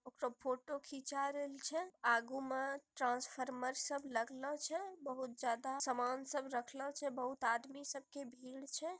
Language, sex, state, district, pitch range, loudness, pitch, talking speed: Maithili, female, Bihar, Bhagalpur, 255-280 Hz, -42 LUFS, 270 Hz, 175 wpm